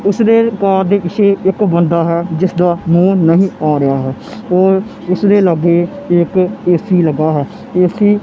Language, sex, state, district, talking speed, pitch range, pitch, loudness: Punjabi, male, Punjab, Kapurthala, 170 wpm, 170-195 Hz, 180 Hz, -12 LUFS